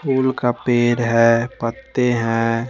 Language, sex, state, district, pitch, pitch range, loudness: Hindi, male, Chandigarh, Chandigarh, 120 Hz, 115-130 Hz, -18 LUFS